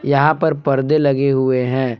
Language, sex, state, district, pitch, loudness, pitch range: Hindi, male, Jharkhand, Palamu, 140 Hz, -16 LUFS, 130-150 Hz